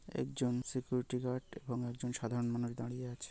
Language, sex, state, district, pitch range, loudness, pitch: Bengali, male, West Bengal, North 24 Parganas, 120-125 Hz, -39 LUFS, 125 Hz